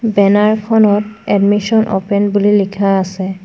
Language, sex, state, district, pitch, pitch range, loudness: Assamese, female, Assam, Sonitpur, 205 Hz, 195-215 Hz, -13 LUFS